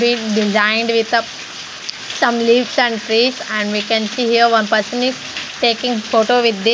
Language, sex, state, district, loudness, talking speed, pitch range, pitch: English, female, Punjab, Fazilka, -16 LUFS, 185 wpm, 220-240 Hz, 230 Hz